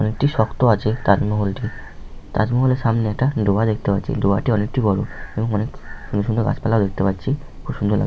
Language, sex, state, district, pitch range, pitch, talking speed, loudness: Bengali, male, West Bengal, Malda, 105-120 Hz, 110 Hz, 180 wpm, -20 LUFS